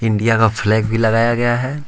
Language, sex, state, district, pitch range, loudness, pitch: Hindi, male, Jharkhand, Ranchi, 110-120 Hz, -16 LUFS, 115 Hz